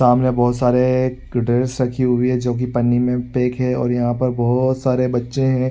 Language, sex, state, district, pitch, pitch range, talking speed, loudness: Hindi, male, Chhattisgarh, Raigarh, 125 Hz, 120-130 Hz, 200 wpm, -18 LUFS